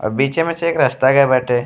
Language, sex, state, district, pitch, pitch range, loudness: Bhojpuri, male, Uttar Pradesh, Deoria, 135 Hz, 125-160 Hz, -15 LUFS